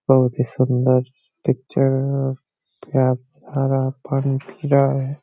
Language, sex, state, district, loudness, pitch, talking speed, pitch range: Hindi, male, Uttar Pradesh, Hamirpur, -20 LUFS, 135 Hz, 80 wpm, 130-135 Hz